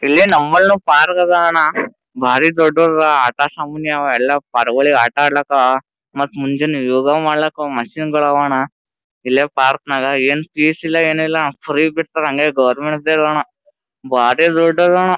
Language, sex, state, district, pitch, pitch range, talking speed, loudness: Kannada, male, Karnataka, Gulbarga, 150 Hz, 135-160 Hz, 160 wpm, -14 LUFS